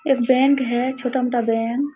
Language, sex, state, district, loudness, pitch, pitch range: Hindi, female, Bihar, Supaul, -20 LUFS, 255 Hz, 240-270 Hz